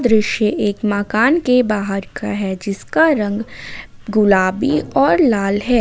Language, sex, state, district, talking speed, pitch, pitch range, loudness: Hindi, female, Jharkhand, Ranchi, 135 wpm, 210 Hz, 200-240 Hz, -16 LUFS